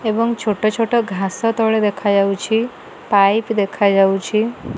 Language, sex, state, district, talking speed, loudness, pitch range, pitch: Odia, female, Odisha, Malkangiri, 100 wpm, -17 LUFS, 195-225 Hz, 215 Hz